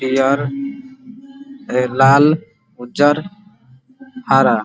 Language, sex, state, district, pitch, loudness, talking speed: Hindi, male, Bihar, Muzaffarpur, 155 Hz, -15 LUFS, 65 wpm